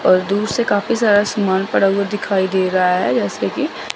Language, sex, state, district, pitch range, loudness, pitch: Hindi, female, Chandigarh, Chandigarh, 190-205 Hz, -17 LUFS, 200 Hz